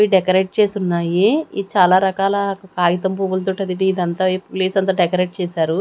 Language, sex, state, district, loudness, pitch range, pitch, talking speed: Telugu, female, Andhra Pradesh, Manyam, -18 LUFS, 180-195 Hz, 190 Hz, 165 wpm